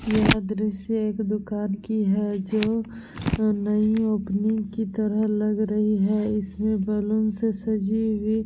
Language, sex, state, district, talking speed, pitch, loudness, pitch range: Hindi, female, Bihar, Vaishali, 140 wpm, 215 Hz, -24 LUFS, 210-220 Hz